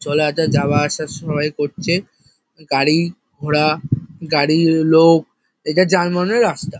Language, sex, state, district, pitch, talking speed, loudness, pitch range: Bengali, male, West Bengal, Kolkata, 155 Hz, 105 wpm, -17 LUFS, 150-170 Hz